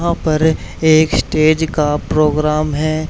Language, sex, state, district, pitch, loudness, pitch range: Hindi, male, Haryana, Charkhi Dadri, 155 Hz, -15 LUFS, 150-160 Hz